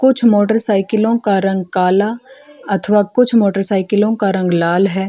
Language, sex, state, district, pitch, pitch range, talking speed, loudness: Hindi, female, Bihar, Gaya, 205 Hz, 195-225 Hz, 140 wpm, -14 LUFS